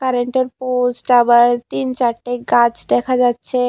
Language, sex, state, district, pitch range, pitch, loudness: Bengali, female, Tripura, West Tripura, 240-255 Hz, 245 Hz, -16 LUFS